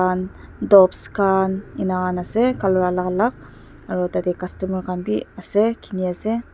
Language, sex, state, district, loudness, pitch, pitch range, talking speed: Nagamese, female, Nagaland, Dimapur, -20 LUFS, 185 Hz, 180-200 Hz, 145 wpm